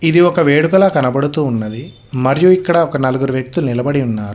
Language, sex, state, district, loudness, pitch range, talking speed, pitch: Telugu, male, Telangana, Hyderabad, -14 LUFS, 130-170 Hz, 165 wpm, 145 Hz